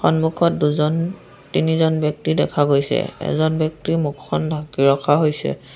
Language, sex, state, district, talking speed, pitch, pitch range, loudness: Assamese, female, Assam, Sonitpur, 125 wpm, 155 Hz, 150-160 Hz, -19 LUFS